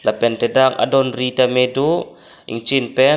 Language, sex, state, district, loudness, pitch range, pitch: Karbi, male, Assam, Karbi Anglong, -17 LUFS, 120-135 Hz, 130 Hz